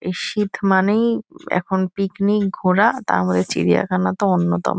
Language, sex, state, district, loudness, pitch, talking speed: Bengali, female, West Bengal, Kolkata, -19 LUFS, 190 Hz, 140 wpm